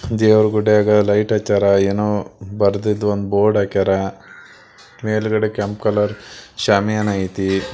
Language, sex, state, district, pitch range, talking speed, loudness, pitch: Kannada, male, Karnataka, Belgaum, 100-105 Hz, 110 wpm, -17 LUFS, 105 Hz